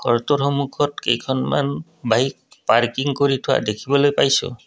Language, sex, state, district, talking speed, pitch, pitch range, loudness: Assamese, male, Assam, Kamrup Metropolitan, 90 wpm, 135 Hz, 120-140 Hz, -20 LUFS